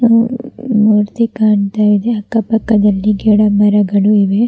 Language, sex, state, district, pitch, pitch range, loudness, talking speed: Kannada, female, Karnataka, Raichur, 210 Hz, 205-230 Hz, -12 LUFS, 120 wpm